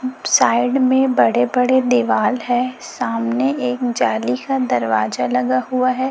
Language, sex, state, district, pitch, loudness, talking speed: Hindi, female, Chhattisgarh, Raipur, 245 Hz, -17 LUFS, 135 wpm